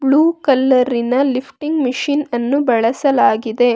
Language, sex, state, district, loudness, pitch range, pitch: Kannada, female, Karnataka, Bangalore, -16 LUFS, 245-285 Hz, 265 Hz